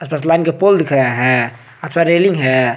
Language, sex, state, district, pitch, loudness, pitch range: Hindi, male, Jharkhand, Garhwa, 155 Hz, -14 LUFS, 130-170 Hz